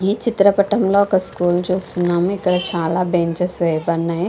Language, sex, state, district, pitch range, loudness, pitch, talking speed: Telugu, female, Andhra Pradesh, Visakhapatnam, 175-200 Hz, -18 LUFS, 180 Hz, 125 wpm